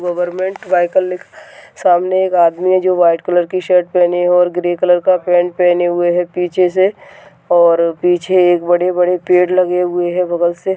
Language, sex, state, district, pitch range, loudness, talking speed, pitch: Hindi, male, Chhattisgarh, Balrampur, 175-185 Hz, -14 LUFS, 195 wpm, 180 Hz